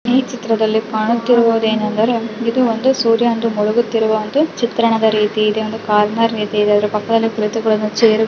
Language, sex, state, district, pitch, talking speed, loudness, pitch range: Kannada, female, Karnataka, Raichur, 225 Hz, 130 wpm, -16 LUFS, 215-230 Hz